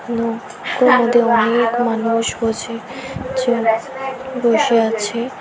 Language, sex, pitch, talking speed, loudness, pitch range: Bengali, female, 235 Hz, 80 wpm, -17 LUFS, 230-255 Hz